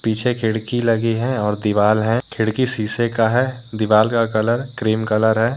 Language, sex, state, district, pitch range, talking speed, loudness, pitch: Hindi, male, Jharkhand, Deoghar, 110-120 Hz, 185 wpm, -18 LUFS, 115 Hz